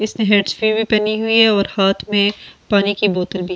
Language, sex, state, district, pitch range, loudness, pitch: Hindi, female, Delhi, New Delhi, 200-215 Hz, -16 LUFS, 205 Hz